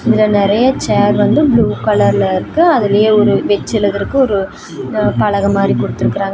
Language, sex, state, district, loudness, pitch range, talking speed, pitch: Tamil, female, Tamil Nadu, Namakkal, -13 LUFS, 200-220 Hz, 140 wpm, 205 Hz